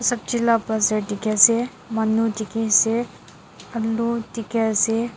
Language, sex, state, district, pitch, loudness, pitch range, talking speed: Nagamese, female, Nagaland, Dimapur, 225 Hz, -20 LUFS, 220-235 Hz, 115 wpm